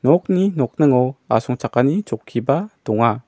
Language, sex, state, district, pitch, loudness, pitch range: Garo, male, Meghalaya, South Garo Hills, 130 Hz, -19 LUFS, 120-170 Hz